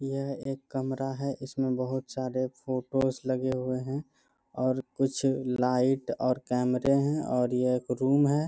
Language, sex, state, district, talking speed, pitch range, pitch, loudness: Hindi, male, Bihar, Bhagalpur, 155 wpm, 130-135 Hz, 130 Hz, -29 LUFS